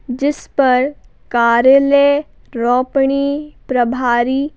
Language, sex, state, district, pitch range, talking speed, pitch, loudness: Hindi, female, Madhya Pradesh, Bhopal, 245-280 Hz, 65 wpm, 270 Hz, -15 LUFS